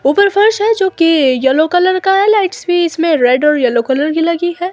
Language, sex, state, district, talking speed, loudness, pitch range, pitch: Hindi, female, Himachal Pradesh, Shimla, 240 wpm, -12 LUFS, 295-380 Hz, 340 Hz